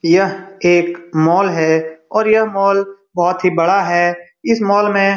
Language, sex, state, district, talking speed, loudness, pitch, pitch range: Hindi, male, Bihar, Supaul, 175 wpm, -15 LUFS, 185 Hz, 175-195 Hz